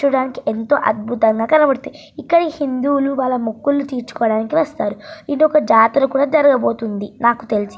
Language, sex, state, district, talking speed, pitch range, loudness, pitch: Telugu, female, Andhra Pradesh, Srikakulam, 130 wpm, 225-290 Hz, -17 LUFS, 270 Hz